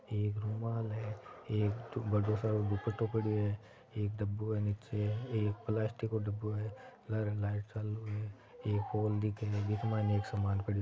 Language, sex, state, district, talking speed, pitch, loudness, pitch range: Marwari, male, Rajasthan, Nagaur, 170 wpm, 105 Hz, -36 LUFS, 105-110 Hz